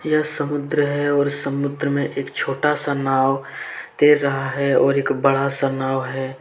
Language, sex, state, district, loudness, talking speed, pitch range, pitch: Hindi, male, Jharkhand, Deoghar, -20 LUFS, 180 wpm, 135-145 Hz, 140 Hz